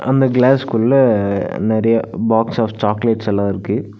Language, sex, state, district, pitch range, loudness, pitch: Tamil, male, Tamil Nadu, Nilgiris, 105-125 Hz, -16 LUFS, 110 Hz